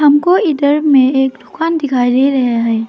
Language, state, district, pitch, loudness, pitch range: Hindi, Arunachal Pradesh, Lower Dibang Valley, 275 Hz, -12 LUFS, 255-300 Hz